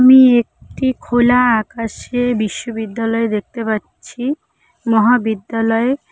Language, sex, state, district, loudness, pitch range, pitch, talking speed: Bengali, female, West Bengal, Cooch Behar, -16 LUFS, 225-255 Hz, 240 Hz, 80 wpm